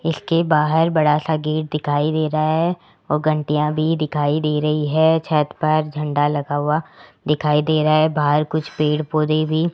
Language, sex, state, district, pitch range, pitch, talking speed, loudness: Hindi, male, Rajasthan, Jaipur, 150-155 Hz, 155 Hz, 185 wpm, -19 LUFS